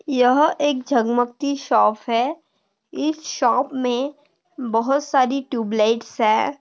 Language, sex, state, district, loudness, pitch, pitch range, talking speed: Hindi, female, Maharashtra, Pune, -20 LUFS, 265 Hz, 235-290 Hz, 120 wpm